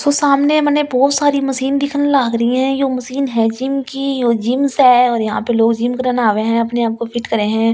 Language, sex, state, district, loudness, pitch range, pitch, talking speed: Hindi, female, Delhi, New Delhi, -15 LUFS, 235-275 Hz, 255 Hz, 250 wpm